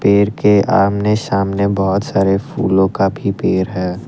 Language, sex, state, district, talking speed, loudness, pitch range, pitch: Hindi, male, Assam, Kamrup Metropolitan, 160 wpm, -15 LUFS, 95-105 Hz, 100 Hz